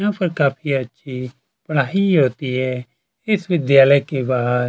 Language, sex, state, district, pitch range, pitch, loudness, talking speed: Hindi, male, Chhattisgarh, Kabirdham, 125-165 Hz, 135 Hz, -18 LUFS, 140 wpm